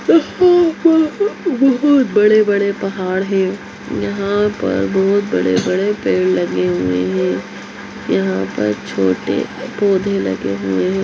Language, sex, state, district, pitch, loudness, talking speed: Hindi, female, Bihar, Muzaffarpur, 190 Hz, -16 LUFS, 125 wpm